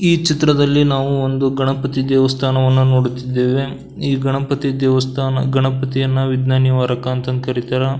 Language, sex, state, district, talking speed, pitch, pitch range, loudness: Kannada, male, Karnataka, Belgaum, 105 wpm, 135 Hz, 130-135 Hz, -17 LUFS